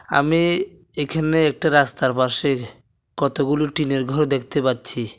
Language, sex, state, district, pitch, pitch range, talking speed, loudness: Bengali, male, Tripura, West Tripura, 140 Hz, 130-155 Hz, 115 wpm, -20 LUFS